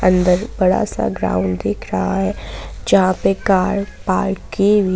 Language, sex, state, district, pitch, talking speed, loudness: Hindi, female, Jharkhand, Ranchi, 185 Hz, 155 wpm, -18 LUFS